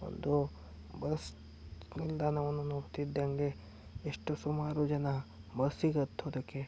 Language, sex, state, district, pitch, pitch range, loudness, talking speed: Kannada, male, Karnataka, Mysore, 140 Hz, 100-145 Hz, -36 LUFS, 90 wpm